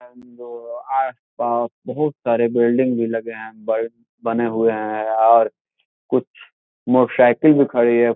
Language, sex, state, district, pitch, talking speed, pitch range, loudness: Hindi, male, Bihar, Gopalganj, 120 Hz, 130 wpm, 115-125 Hz, -18 LUFS